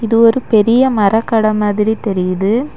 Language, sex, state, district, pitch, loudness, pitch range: Tamil, female, Tamil Nadu, Kanyakumari, 220 Hz, -13 LUFS, 210-230 Hz